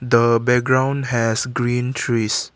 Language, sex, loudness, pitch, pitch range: English, male, -19 LUFS, 120 Hz, 115-130 Hz